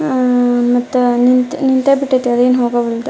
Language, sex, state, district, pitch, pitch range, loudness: Kannada, female, Karnataka, Dharwad, 250 Hz, 245-260 Hz, -13 LUFS